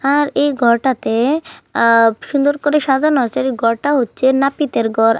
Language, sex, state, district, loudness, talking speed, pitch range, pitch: Bengali, female, West Bengal, Kolkata, -15 LUFS, 150 wpm, 230-290 Hz, 265 Hz